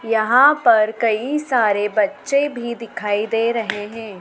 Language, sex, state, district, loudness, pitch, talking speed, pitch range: Hindi, female, Madhya Pradesh, Dhar, -18 LUFS, 230 Hz, 145 wpm, 215-280 Hz